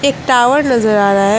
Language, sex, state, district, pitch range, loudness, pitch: Hindi, female, West Bengal, Alipurduar, 205-265 Hz, -12 LUFS, 245 Hz